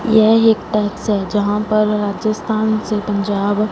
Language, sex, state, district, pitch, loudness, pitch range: Hindi, female, Punjab, Fazilka, 210 Hz, -16 LUFS, 205-215 Hz